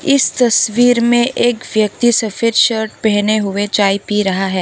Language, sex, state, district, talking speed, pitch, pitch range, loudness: Hindi, female, Tripura, West Tripura, 170 wpm, 220 Hz, 205-240 Hz, -14 LUFS